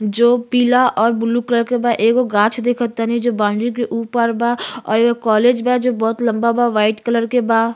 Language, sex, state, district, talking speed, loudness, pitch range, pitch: Bhojpuri, female, Uttar Pradesh, Gorakhpur, 200 wpm, -16 LUFS, 225-240 Hz, 235 Hz